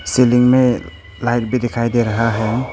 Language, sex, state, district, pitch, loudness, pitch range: Hindi, male, Arunachal Pradesh, Papum Pare, 120 Hz, -16 LUFS, 110-125 Hz